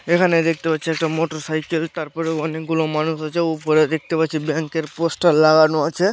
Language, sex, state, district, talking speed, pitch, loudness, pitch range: Bengali, male, West Bengal, Malda, 165 wpm, 160 Hz, -19 LUFS, 155-165 Hz